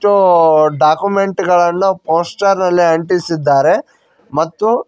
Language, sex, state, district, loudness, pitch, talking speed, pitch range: Kannada, male, Karnataka, Koppal, -13 LUFS, 175 Hz, 85 wpm, 160-195 Hz